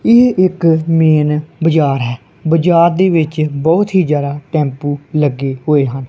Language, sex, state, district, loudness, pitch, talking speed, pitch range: Punjabi, female, Punjab, Kapurthala, -13 LUFS, 155 Hz, 150 wpm, 145-170 Hz